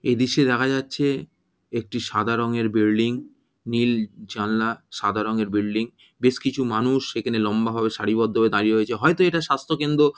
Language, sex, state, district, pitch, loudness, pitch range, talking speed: Bengali, female, West Bengal, Jhargram, 115 Hz, -23 LUFS, 110-135 Hz, 145 wpm